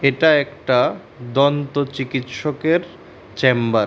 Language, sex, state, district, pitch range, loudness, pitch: Bengali, male, Tripura, West Tripura, 125-145 Hz, -19 LUFS, 135 Hz